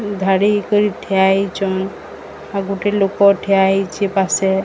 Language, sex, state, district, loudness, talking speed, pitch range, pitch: Odia, female, Odisha, Sambalpur, -16 LUFS, 130 wpm, 190-200 Hz, 195 Hz